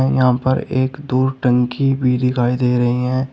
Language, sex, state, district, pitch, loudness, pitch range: Hindi, male, Uttar Pradesh, Shamli, 130 Hz, -17 LUFS, 125-130 Hz